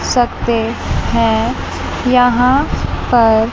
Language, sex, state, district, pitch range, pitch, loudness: Hindi, female, Chandigarh, Chandigarh, 225-245 Hz, 235 Hz, -14 LUFS